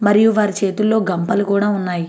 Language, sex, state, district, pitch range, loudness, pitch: Telugu, female, Andhra Pradesh, Anantapur, 190-215 Hz, -17 LUFS, 200 Hz